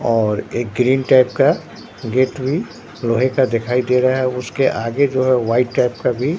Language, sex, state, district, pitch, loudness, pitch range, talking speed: Hindi, male, Bihar, Katihar, 125 Hz, -17 LUFS, 120-130 Hz, 195 wpm